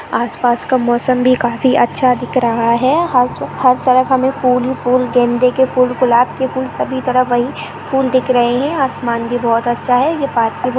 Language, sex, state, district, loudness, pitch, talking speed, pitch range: Hindi, female, Chhattisgarh, Kabirdham, -14 LUFS, 250 Hz, 205 wpm, 240-260 Hz